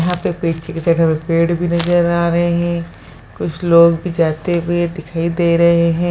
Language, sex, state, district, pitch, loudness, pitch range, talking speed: Hindi, female, Bihar, Jahanabad, 170 Hz, -16 LUFS, 165-175 Hz, 205 wpm